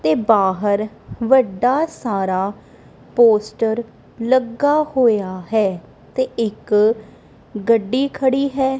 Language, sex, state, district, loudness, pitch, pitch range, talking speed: Punjabi, female, Punjab, Kapurthala, -18 LUFS, 230 Hz, 210-260 Hz, 90 wpm